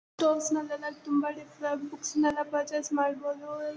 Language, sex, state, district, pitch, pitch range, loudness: Kannada, female, Karnataka, Bellary, 295 Hz, 290-300 Hz, -31 LUFS